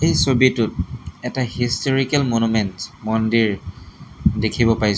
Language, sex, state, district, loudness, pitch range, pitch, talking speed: Assamese, male, Assam, Hailakandi, -20 LUFS, 105-130 Hz, 115 Hz, 95 wpm